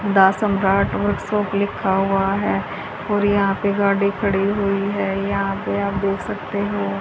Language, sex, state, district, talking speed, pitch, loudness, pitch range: Hindi, female, Haryana, Charkhi Dadri, 160 wpm, 200 Hz, -20 LUFS, 195-205 Hz